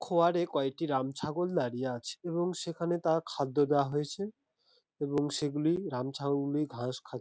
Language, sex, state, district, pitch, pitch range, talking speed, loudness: Bengali, male, West Bengal, Dakshin Dinajpur, 150 Hz, 140-170 Hz, 135 wpm, -32 LUFS